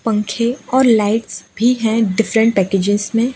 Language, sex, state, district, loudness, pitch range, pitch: Hindi, female, Gujarat, Valsad, -16 LUFS, 210-235 Hz, 225 Hz